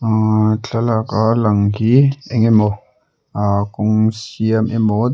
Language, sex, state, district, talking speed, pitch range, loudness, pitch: Mizo, male, Mizoram, Aizawl, 115 wpm, 105-115 Hz, -16 LUFS, 110 Hz